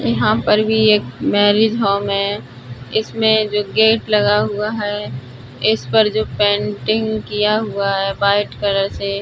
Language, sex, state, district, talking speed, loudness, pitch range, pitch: Hindi, female, Uttar Pradesh, Budaun, 150 wpm, -16 LUFS, 200-215 Hz, 205 Hz